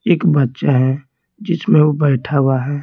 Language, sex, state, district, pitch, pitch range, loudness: Hindi, male, Bihar, Patna, 145 Hz, 135-170 Hz, -15 LUFS